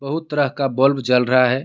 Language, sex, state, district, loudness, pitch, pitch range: Hindi, male, Jharkhand, Garhwa, -18 LUFS, 135 Hz, 130-140 Hz